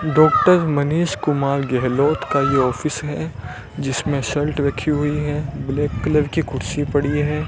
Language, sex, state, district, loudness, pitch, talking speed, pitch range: Hindi, male, Rajasthan, Bikaner, -19 LUFS, 145 Hz, 150 wpm, 140-150 Hz